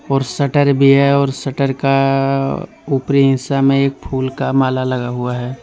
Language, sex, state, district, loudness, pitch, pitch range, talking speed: Hindi, male, Jharkhand, Deoghar, -15 LUFS, 135 Hz, 130-140 Hz, 180 wpm